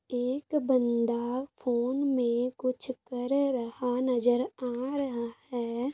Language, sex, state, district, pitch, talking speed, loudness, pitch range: Hindi, female, Bihar, East Champaran, 250 Hz, 110 wpm, -30 LUFS, 240-260 Hz